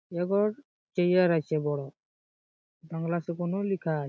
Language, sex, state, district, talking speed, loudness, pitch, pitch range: Bengali, male, West Bengal, Jhargram, 105 wpm, -28 LUFS, 170 Hz, 160-185 Hz